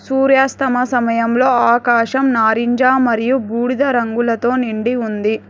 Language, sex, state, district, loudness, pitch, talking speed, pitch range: Telugu, female, Telangana, Hyderabad, -15 LUFS, 240 Hz, 100 wpm, 230-260 Hz